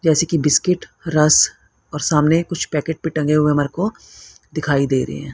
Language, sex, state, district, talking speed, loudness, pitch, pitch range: Hindi, female, Haryana, Rohtak, 190 wpm, -18 LUFS, 155 Hz, 150-165 Hz